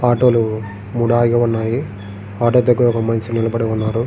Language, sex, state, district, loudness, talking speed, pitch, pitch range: Telugu, male, Andhra Pradesh, Srikakulam, -17 LUFS, 175 wpm, 115 Hz, 110-120 Hz